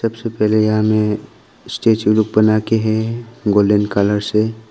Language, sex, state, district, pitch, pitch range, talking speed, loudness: Hindi, male, Arunachal Pradesh, Longding, 110 Hz, 105-110 Hz, 155 wpm, -16 LUFS